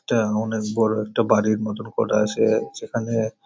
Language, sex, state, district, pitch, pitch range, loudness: Bengali, male, West Bengal, Paschim Medinipur, 110 Hz, 105-115 Hz, -22 LUFS